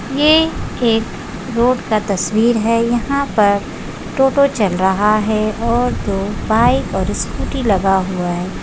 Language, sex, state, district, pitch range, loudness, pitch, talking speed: Hindi, female, Maharashtra, Solapur, 200-245 Hz, -16 LUFS, 220 Hz, 140 wpm